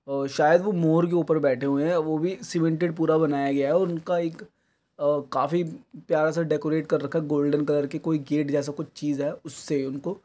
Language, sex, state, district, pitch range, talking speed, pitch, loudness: Hindi, male, Uttar Pradesh, Deoria, 145-170 Hz, 215 wpm, 155 Hz, -25 LUFS